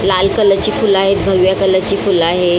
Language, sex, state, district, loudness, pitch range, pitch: Marathi, female, Maharashtra, Mumbai Suburban, -13 LUFS, 185-195 Hz, 195 Hz